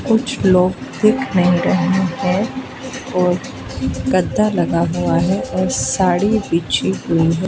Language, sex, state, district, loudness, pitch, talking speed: Hindi, female, Madhya Pradesh, Dhar, -17 LUFS, 180 Hz, 130 wpm